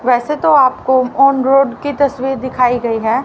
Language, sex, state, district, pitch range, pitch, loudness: Hindi, female, Haryana, Rohtak, 250-275 Hz, 260 Hz, -13 LUFS